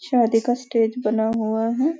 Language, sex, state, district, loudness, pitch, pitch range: Hindi, female, Maharashtra, Nagpur, -21 LUFS, 230 Hz, 220-250 Hz